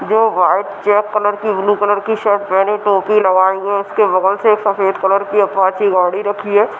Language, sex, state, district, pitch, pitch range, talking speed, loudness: Hindi, female, Uttar Pradesh, Deoria, 205 Hz, 195-210 Hz, 205 wpm, -14 LUFS